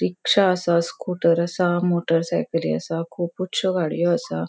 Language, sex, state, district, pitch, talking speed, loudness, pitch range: Konkani, female, Goa, North and South Goa, 170 Hz, 135 wpm, -22 LUFS, 165-180 Hz